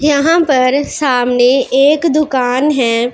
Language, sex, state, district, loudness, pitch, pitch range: Hindi, female, Punjab, Pathankot, -12 LUFS, 270 Hz, 250-300 Hz